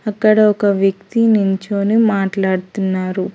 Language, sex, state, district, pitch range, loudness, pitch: Telugu, female, Telangana, Hyderabad, 190-215 Hz, -15 LUFS, 200 Hz